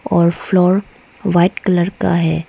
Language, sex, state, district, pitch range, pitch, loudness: Hindi, female, Arunachal Pradesh, Lower Dibang Valley, 170-185 Hz, 175 Hz, -15 LUFS